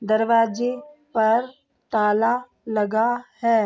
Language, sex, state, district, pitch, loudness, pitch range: Hindi, female, Bihar, Begusarai, 230 Hz, -22 LUFS, 220-250 Hz